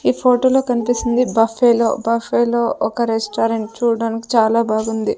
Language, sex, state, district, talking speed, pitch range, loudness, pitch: Telugu, female, Andhra Pradesh, Sri Satya Sai, 115 wpm, 225-245 Hz, -17 LUFS, 230 Hz